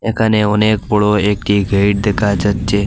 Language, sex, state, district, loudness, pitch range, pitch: Bengali, male, Assam, Hailakandi, -14 LUFS, 100-105 Hz, 105 Hz